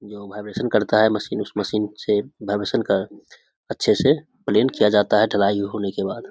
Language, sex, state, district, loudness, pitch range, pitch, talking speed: Hindi, male, Bihar, Samastipur, -21 LUFS, 100-105 Hz, 105 Hz, 200 wpm